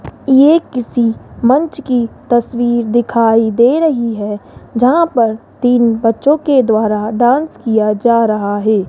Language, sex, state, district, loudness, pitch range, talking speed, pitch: Hindi, female, Rajasthan, Jaipur, -13 LUFS, 225-260 Hz, 135 wpm, 235 Hz